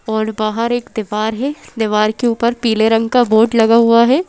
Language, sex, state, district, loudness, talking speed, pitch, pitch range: Hindi, female, Madhya Pradesh, Bhopal, -14 LUFS, 210 wpm, 230 Hz, 220-240 Hz